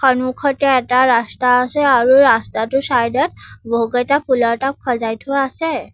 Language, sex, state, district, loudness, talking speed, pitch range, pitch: Assamese, female, Assam, Sonitpur, -16 LUFS, 130 wpm, 240-275 Hz, 255 Hz